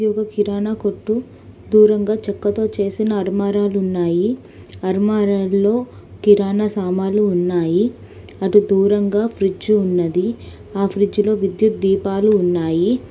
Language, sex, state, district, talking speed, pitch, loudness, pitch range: Telugu, female, Telangana, Hyderabad, 100 wpm, 205 Hz, -18 LUFS, 195-210 Hz